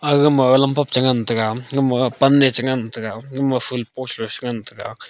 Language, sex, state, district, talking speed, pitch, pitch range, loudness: Wancho, male, Arunachal Pradesh, Longding, 200 wpm, 130 Hz, 115-135 Hz, -18 LUFS